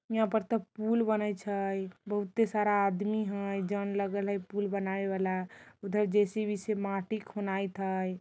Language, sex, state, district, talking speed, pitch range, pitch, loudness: Bajjika, female, Bihar, Vaishali, 160 wpm, 195-210 Hz, 200 Hz, -32 LUFS